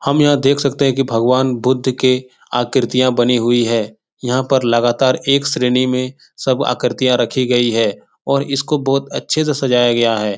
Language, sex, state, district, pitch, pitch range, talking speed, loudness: Hindi, male, Bihar, Jahanabad, 130 Hz, 120-135 Hz, 185 wpm, -15 LUFS